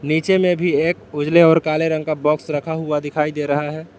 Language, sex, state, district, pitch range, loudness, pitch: Hindi, male, Jharkhand, Palamu, 150-160 Hz, -18 LUFS, 155 Hz